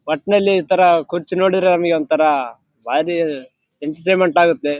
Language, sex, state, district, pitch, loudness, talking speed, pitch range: Kannada, male, Karnataka, Raichur, 170 Hz, -16 LUFS, 110 wpm, 155-185 Hz